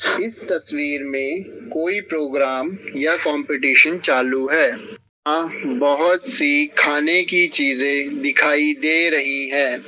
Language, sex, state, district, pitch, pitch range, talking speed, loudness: Hindi, male, Rajasthan, Jaipur, 150 Hz, 140-165 Hz, 115 wpm, -17 LUFS